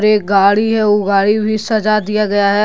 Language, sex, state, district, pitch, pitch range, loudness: Hindi, male, Jharkhand, Deoghar, 210 Hz, 205-215 Hz, -13 LUFS